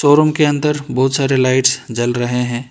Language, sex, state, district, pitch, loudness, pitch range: Hindi, male, Karnataka, Bangalore, 130 Hz, -15 LUFS, 125-145 Hz